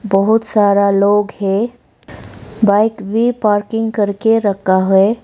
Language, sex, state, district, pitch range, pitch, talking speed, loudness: Hindi, female, Arunachal Pradesh, Lower Dibang Valley, 195-225 Hz, 205 Hz, 115 wpm, -14 LUFS